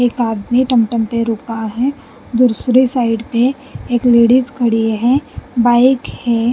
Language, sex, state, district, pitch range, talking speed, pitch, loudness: Hindi, female, Punjab, Pathankot, 230-250 Hz, 140 wpm, 240 Hz, -14 LUFS